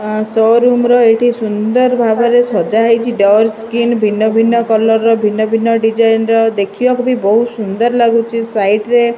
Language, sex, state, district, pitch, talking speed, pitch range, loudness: Odia, male, Odisha, Malkangiri, 225 Hz, 155 wpm, 220-235 Hz, -12 LUFS